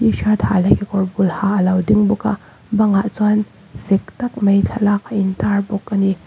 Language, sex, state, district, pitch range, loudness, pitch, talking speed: Mizo, female, Mizoram, Aizawl, 195-210 Hz, -17 LUFS, 200 Hz, 220 wpm